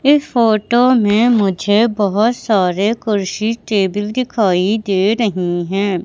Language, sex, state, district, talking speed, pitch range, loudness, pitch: Hindi, female, Madhya Pradesh, Katni, 120 wpm, 195-230 Hz, -15 LUFS, 210 Hz